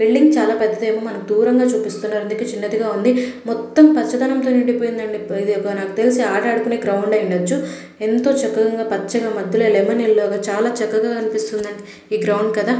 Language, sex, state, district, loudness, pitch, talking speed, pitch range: Telugu, female, Andhra Pradesh, Srikakulam, -18 LUFS, 220 Hz, 160 wpm, 210-235 Hz